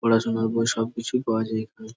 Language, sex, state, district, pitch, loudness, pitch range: Bengali, male, West Bengal, Jhargram, 115 Hz, -25 LUFS, 110-115 Hz